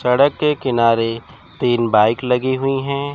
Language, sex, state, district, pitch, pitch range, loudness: Hindi, male, Chandigarh, Chandigarh, 125 Hz, 115-140 Hz, -17 LUFS